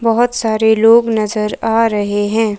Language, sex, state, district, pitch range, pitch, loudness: Hindi, female, Himachal Pradesh, Shimla, 215-225 Hz, 220 Hz, -13 LUFS